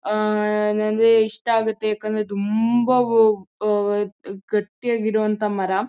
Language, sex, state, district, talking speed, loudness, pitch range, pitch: Kannada, female, Karnataka, Mysore, 110 wpm, -20 LUFS, 210-220 Hz, 215 Hz